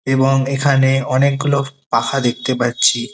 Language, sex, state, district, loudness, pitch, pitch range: Bengali, male, West Bengal, Kolkata, -16 LUFS, 135 Hz, 125-140 Hz